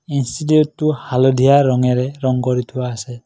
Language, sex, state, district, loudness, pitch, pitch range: Assamese, male, Assam, Kamrup Metropolitan, -16 LUFS, 130 Hz, 125-145 Hz